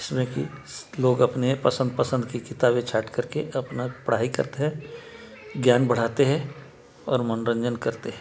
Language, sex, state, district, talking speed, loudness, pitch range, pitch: Chhattisgarhi, male, Chhattisgarh, Sarguja, 155 wpm, -25 LUFS, 120-135 Hz, 125 Hz